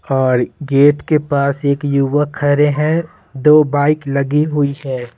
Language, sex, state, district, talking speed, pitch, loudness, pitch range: Hindi, male, Bihar, Patna, 150 wpm, 145 Hz, -15 LUFS, 140-150 Hz